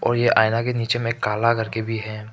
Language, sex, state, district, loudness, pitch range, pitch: Hindi, male, Arunachal Pradesh, Papum Pare, -21 LUFS, 110-115 Hz, 115 Hz